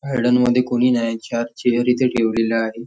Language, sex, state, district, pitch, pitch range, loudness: Marathi, male, Maharashtra, Nagpur, 120 Hz, 115-125 Hz, -18 LUFS